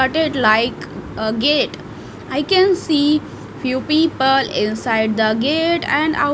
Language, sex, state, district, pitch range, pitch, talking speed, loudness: English, female, Punjab, Fazilka, 230-310 Hz, 280 Hz, 135 wpm, -17 LUFS